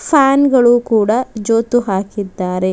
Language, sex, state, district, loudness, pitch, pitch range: Kannada, female, Karnataka, Bidar, -14 LUFS, 225 Hz, 200-245 Hz